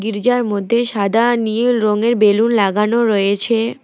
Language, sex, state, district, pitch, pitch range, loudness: Bengali, female, West Bengal, Alipurduar, 225 Hz, 210-235 Hz, -15 LUFS